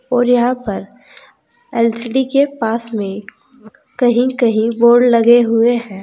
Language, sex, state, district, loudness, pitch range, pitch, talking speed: Hindi, female, Uttar Pradesh, Saharanpur, -14 LUFS, 230-250 Hz, 240 Hz, 130 wpm